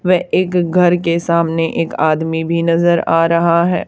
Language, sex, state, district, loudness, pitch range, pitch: Hindi, female, Haryana, Charkhi Dadri, -14 LUFS, 165-175 Hz, 170 Hz